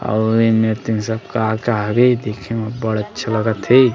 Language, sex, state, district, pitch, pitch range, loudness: Chhattisgarhi, male, Chhattisgarh, Sarguja, 110 Hz, 110-115 Hz, -18 LUFS